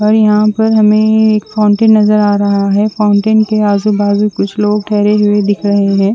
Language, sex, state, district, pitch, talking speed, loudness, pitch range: Hindi, female, Chandigarh, Chandigarh, 210 Hz, 205 wpm, -10 LUFS, 205-215 Hz